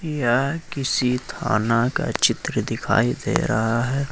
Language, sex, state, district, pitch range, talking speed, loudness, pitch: Hindi, male, Jharkhand, Ranchi, 115-140 Hz, 130 wpm, -22 LUFS, 125 Hz